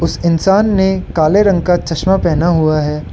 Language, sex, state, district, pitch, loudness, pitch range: Hindi, male, Arunachal Pradesh, Lower Dibang Valley, 175 Hz, -13 LUFS, 160-190 Hz